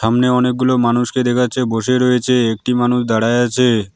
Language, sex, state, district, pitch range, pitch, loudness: Bengali, male, West Bengal, Alipurduar, 120-125 Hz, 125 Hz, -15 LUFS